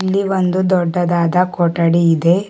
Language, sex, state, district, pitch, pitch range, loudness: Kannada, male, Karnataka, Bidar, 180 Hz, 170-185 Hz, -15 LUFS